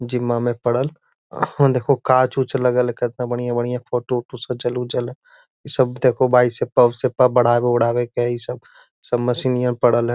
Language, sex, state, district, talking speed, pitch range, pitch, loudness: Magahi, male, Bihar, Gaya, 130 wpm, 120-130 Hz, 125 Hz, -19 LUFS